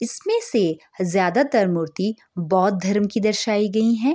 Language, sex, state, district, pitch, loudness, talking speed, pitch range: Hindi, female, Bihar, Gopalganj, 210 Hz, -21 LUFS, 160 wpm, 185-230 Hz